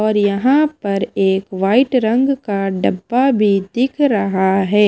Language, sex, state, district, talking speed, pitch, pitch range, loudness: Hindi, female, Himachal Pradesh, Shimla, 145 wpm, 210 Hz, 195-255 Hz, -16 LUFS